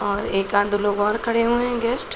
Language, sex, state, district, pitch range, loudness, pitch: Hindi, male, Bihar, Araria, 205-235 Hz, -21 LUFS, 210 Hz